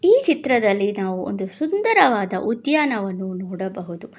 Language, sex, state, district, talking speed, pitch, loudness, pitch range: Kannada, female, Karnataka, Bangalore, 100 wpm, 205 Hz, -20 LUFS, 190-300 Hz